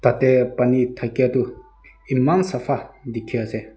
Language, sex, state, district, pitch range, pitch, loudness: Nagamese, male, Nagaland, Dimapur, 120-130 Hz, 125 Hz, -21 LUFS